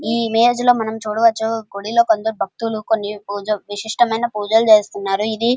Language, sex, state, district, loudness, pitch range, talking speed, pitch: Telugu, female, Andhra Pradesh, Krishna, -18 LUFS, 210-230 Hz, 150 wpm, 220 Hz